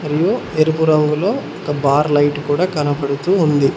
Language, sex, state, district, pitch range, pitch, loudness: Telugu, male, Telangana, Mahabubabad, 145-160 Hz, 150 Hz, -16 LUFS